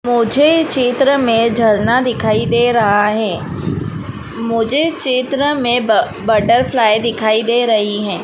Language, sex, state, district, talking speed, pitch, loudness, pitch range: Hindi, female, Madhya Pradesh, Dhar, 125 wpm, 230 Hz, -14 LUFS, 215-250 Hz